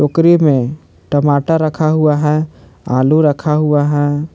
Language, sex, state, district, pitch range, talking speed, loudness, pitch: Hindi, male, Jharkhand, Palamu, 145-155 Hz, 135 wpm, -13 LUFS, 150 Hz